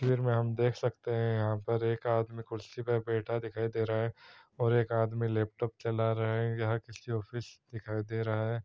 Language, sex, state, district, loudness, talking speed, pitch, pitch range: Hindi, male, Bihar, Saran, -33 LUFS, 215 wpm, 115 Hz, 110-115 Hz